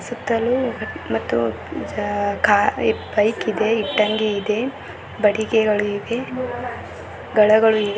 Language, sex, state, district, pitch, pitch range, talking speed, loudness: Kannada, female, Karnataka, Belgaum, 215 Hz, 205-230 Hz, 90 wpm, -20 LUFS